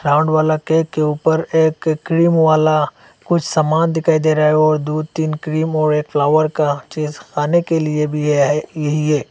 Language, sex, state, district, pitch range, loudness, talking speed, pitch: Hindi, male, Assam, Hailakandi, 150-160 Hz, -16 LUFS, 185 wpm, 155 Hz